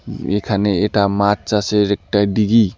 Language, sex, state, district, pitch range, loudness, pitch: Bengali, male, West Bengal, Alipurduar, 100-105 Hz, -17 LUFS, 100 Hz